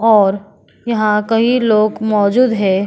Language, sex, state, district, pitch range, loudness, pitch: Hindi, female, Uttarakhand, Tehri Garhwal, 205-225 Hz, -14 LUFS, 215 Hz